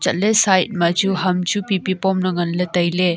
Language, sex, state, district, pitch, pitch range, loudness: Wancho, female, Arunachal Pradesh, Longding, 185 Hz, 180-190 Hz, -18 LUFS